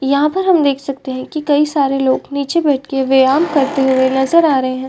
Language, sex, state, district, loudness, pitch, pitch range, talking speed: Hindi, female, Uttar Pradesh, Varanasi, -14 LUFS, 275 Hz, 265-300 Hz, 235 wpm